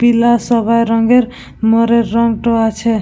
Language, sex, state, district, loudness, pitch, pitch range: Bengali, female, West Bengal, Purulia, -13 LUFS, 230 Hz, 230-235 Hz